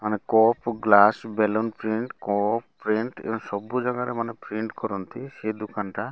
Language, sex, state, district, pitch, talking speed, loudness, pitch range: Odia, male, Odisha, Malkangiri, 110 Hz, 175 wpm, -25 LUFS, 105-115 Hz